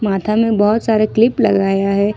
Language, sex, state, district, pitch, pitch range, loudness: Hindi, female, Jharkhand, Ranchi, 210 Hz, 200-225 Hz, -14 LUFS